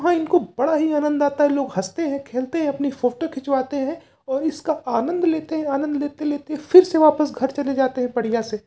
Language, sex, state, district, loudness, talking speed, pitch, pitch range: Hindi, male, Uttar Pradesh, Varanasi, -21 LUFS, 235 wpm, 290 Hz, 265-310 Hz